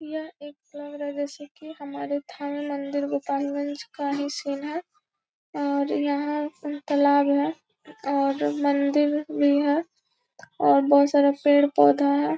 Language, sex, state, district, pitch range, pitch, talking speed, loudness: Hindi, female, Bihar, Gopalganj, 280-295 Hz, 285 Hz, 135 wpm, -24 LUFS